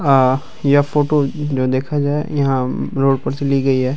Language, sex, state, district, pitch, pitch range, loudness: Hindi, male, Bihar, Araria, 140 Hz, 135-145 Hz, -17 LUFS